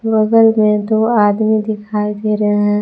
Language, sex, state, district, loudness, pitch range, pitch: Hindi, female, Jharkhand, Palamu, -14 LUFS, 210-220 Hz, 215 Hz